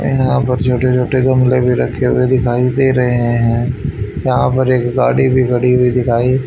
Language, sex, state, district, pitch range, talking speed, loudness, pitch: Hindi, male, Haryana, Rohtak, 125-130 Hz, 185 wpm, -14 LUFS, 125 Hz